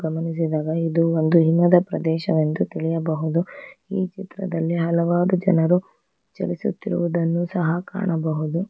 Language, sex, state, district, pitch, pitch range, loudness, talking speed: Kannada, female, Karnataka, Bangalore, 170 Hz, 160-180 Hz, -22 LUFS, 85 wpm